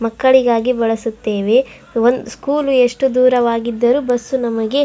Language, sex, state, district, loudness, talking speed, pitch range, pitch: Kannada, female, Karnataka, Raichur, -15 LUFS, 110 wpm, 230-260 Hz, 245 Hz